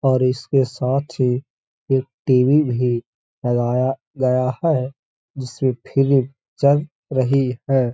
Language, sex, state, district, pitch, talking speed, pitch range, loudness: Hindi, male, Uttar Pradesh, Hamirpur, 130 Hz, 115 wpm, 125-135 Hz, -20 LUFS